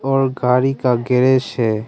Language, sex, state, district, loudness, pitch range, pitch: Hindi, male, Arunachal Pradesh, Longding, -16 LUFS, 125-135 Hz, 130 Hz